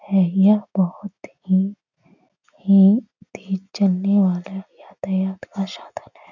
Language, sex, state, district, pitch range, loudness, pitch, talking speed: Hindi, female, West Bengal, North 24 Parganas, 190-200 Hz, -20 LUFS, 195 Hz, 115 wpm